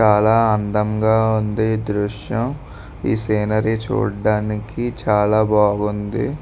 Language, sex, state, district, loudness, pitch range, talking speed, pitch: Telugu, male, Andhra Pradesh, Visakhapatnam, -19 LUFS, 105-110 Hz, 95 wpm, 105 Hz